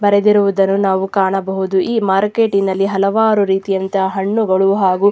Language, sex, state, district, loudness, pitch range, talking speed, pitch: Kannada, female, Karnataka, Dakshina Kannada, -15 LUFS, 190-205 Hz, 140 wpm, 195 Hz